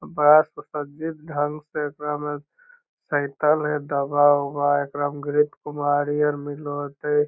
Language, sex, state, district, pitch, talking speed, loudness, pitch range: Magahi, male, Bihar, Lakhisarai, 145 Hz, 60 wpm, -23 LUFS, 145-150 Hz